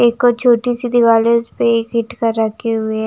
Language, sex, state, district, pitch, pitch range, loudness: Hindi, female, Himachal Pradesh, Shimla, 235 Hz, 225-240 Hz, -15 LUFS